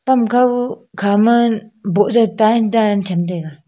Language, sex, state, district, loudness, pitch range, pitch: Wancho, female, Arunachal Pradesh, Longding, -15 LUFS, 200-235 Hz, 220 Hz